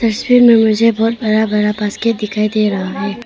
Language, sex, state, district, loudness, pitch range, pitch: Hindi, female, Arunachal Pradesh, Papum Pare, -13 LUFS, 210-230 Hz, 215 Hz